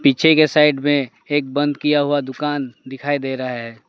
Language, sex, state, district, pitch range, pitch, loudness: Hindi, male, West Bengal, Alipurduar, 135-145 Hz, 145 Hz, -18 LUFS